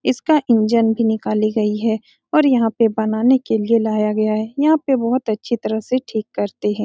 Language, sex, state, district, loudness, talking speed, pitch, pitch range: Hindi, female, Bihar, Saran, -18 LUFS, 220 wpm, 225 Hz, 215-250 Hz